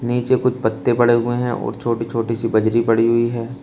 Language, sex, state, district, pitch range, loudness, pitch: Hindi, male, Uttar Pradesh, Shamli, 115-120 Hz, -18 LUFS, 115 Hz